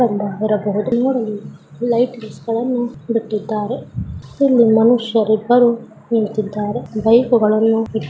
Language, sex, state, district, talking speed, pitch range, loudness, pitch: Kannada, female, Karnataka, Mysore, 60 wpm, 215-240 Hz, -17 LUFS, 225 Hz